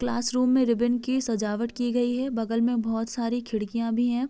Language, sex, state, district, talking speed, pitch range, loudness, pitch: Hindi, female, Uttar Pradesh, Deoria, 210 wpm, 230-245 Hz, -26 LUFS, 240 Hz